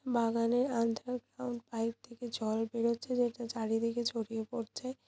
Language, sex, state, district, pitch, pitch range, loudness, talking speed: Bengali, female, West Bengal, Purulia, 235 Hz, 230-245 Hz, -35 LUFS, 120 wpm